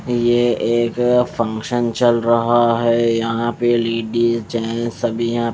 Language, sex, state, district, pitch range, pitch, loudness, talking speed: Hindi, male, Bihar, West Champaran, 115-120 Hz, 115 Hz, -17 LUFS, 130 wpm